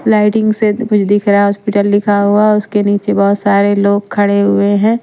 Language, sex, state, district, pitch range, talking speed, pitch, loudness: Hindi, female, Haryana, Rohtak, 200-210 Hz, 215 wpm, 205 Hz, -12 LUFS